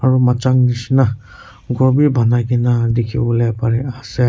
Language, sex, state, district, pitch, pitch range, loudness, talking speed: Nagamese, male, Nagaland, Kohima, 120 Hz, 120-130 Hz, -16 LUFS, 125 wpm